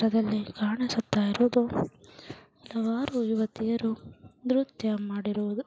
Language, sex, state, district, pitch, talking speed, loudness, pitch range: Kannada, female, Karnataka, Chamarajanagar, 225 Hz, 95 wpm, -29 LUFS, 215-245 Hz